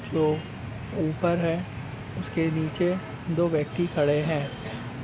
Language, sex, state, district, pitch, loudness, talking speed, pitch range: Hindi, male, Uttarakhand, Uttarkashi, 155 Hz, -28 LUFS, 105 wpm, 130-165 Hz